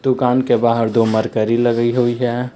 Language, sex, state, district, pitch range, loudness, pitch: Hindi, male, Jharkhand, Palamu, 115-125 Hz, -16 LUFS, 120 Hz